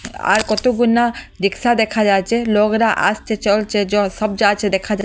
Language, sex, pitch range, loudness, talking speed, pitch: Bengali, female, 205-225 Hz, -16 LUFS, 155 wpm, 215 Hz